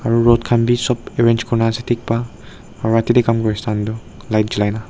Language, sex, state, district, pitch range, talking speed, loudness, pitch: Nagamese, male, Nagaland, Dimapur, 110-120 Hz, 245 wpm, -17 LUFS, 115 Hz